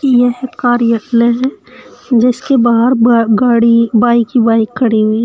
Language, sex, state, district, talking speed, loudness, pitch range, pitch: Hindi, female, Uttar Pradesh, Shamli, 160 wpm, -11 LUFS, 230-245 Hz, 235 Hz